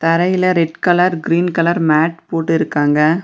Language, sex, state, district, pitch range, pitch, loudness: Tamil, female, Tamil Nadu, Nilgiris, 160-175 Hz, 165 Hz, -15 LUFS